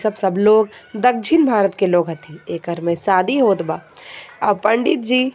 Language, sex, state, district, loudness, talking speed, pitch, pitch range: Bhojpuri, female, Jharkhand, Palamu, -17 LUFS, 170 wpm, 210 Hz, 185-245 Hz